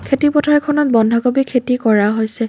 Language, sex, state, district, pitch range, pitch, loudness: Assamese, female, Assam, Kamrup Metropolitan, 225-295 Hz, 250 Hz, -15 LUFS